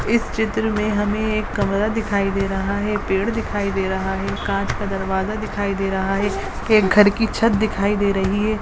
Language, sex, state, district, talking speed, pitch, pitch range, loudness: Hindi, female, Maharashtra, Dhule, 210 wpm, 205 Hz, 195-215 Hz, -20 LUFS